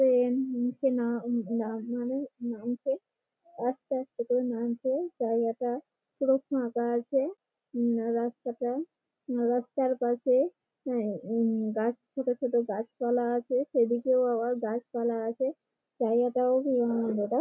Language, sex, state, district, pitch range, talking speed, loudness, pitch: Bengali, female, West Bengal, Malda, 235-260 Hz, 110 wpm, -30 LUFS, 245 Hz